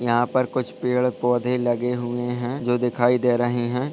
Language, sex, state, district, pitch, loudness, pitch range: Hindi, male, Bihar, Purnia, 125 Hz, -22 LUFS, 120-125 Hz